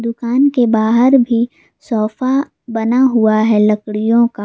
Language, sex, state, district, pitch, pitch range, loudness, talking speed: Hindi, female, Jharkhand, Garhwa, 235 Hz, 220-255 Hz, -14 LUFS, 135 wpm